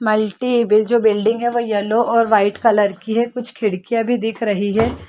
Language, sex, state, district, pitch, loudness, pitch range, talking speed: Hindi, female, Chhattisgarh, Balrampur, 225 Hz, -17 LUFS, 210-235 Hz, 210 wpm